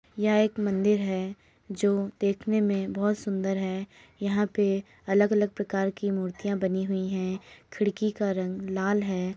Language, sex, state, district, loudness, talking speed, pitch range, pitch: Hindi, female, Uttar Pradesh, Jalaun, -28 LUFS, 145 wpm, 190-205 Hz, 200 Hz